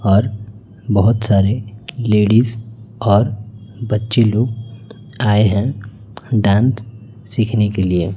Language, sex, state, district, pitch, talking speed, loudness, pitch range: Hindi, male, Chhattisgarh, Raipur, 110 Hz, 95 wpm, -16 LUFS, 105-115 Hz